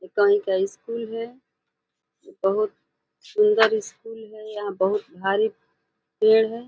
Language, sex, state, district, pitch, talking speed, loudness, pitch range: Hindi, female, Uttar Pradesh, Deoria, 215 Hz, 125 wpm, -23 LUFS, 200-225 Hz